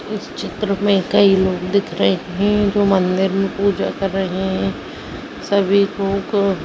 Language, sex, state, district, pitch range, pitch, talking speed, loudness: Hindi, female, Chhattisgarh, Jashpur, 190-200 Hz, 195 Hz, 160 wpm, -18 LUFS